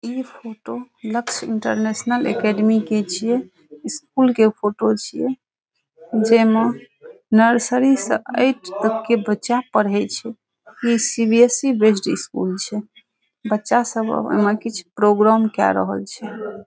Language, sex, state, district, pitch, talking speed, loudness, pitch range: Maithili, female, Bihar, Saharsa, 225 Hz, 125 wpm, -19 LUFS, 215-240 Hz